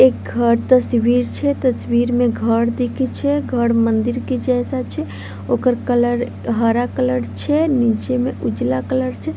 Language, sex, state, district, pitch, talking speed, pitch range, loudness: Maithili, female, Bihar, Vaishali, 240 Hz, 145 wpm, 225-250 Hz, -18 LUFS